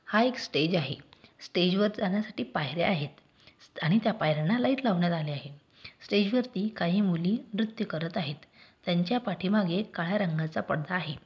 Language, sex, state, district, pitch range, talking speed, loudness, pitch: Marathi, female, Maharashtra, Aurangabad, 165-215 Hz, 145 wpm, -29 LUFS, 190 Hz